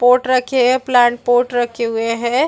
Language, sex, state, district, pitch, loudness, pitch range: Hindi, female, Chhattisgarh, Bastar, 245 Hz, -15 LUFS, 240-255 Hz